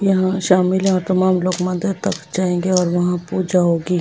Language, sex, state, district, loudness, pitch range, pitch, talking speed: Hindi, female, Delhi, New Delhi, -18 LUFS, 180-185 Hz, 185 Hz, 120 wpm